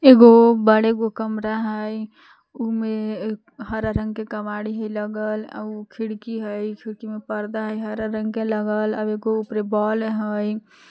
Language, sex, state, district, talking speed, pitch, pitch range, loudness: Magahi, female, Jharkhand, Palamu, 145 wpm, 215 Hz, 215-220 Hz, -21 LUFS